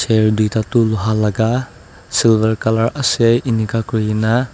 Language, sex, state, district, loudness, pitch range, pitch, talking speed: Nagamese, male, Nagaland, Dimapur, -16 LUFS, 110-115 Hz, 110 Hz, 130 wpm